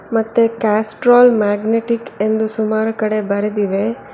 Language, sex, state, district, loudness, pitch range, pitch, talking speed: Kannada, female, Karnataka, Bangalore, -16 LUFS, 210-230 Hz, 220 Hz, 100 wpm